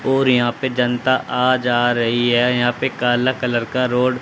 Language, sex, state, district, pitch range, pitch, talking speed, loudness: Hindi, male, Haryana, Charkhi Dadri, 120-130 Hz, 125 Hz, 215 wpm, -18 LUFS